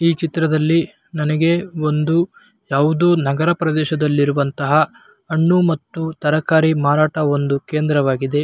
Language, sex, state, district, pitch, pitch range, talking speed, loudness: Kannada, male, Karnataka, Raichur, 155 Hz, 150-165 Hz, 100 wpm, -18 LUFS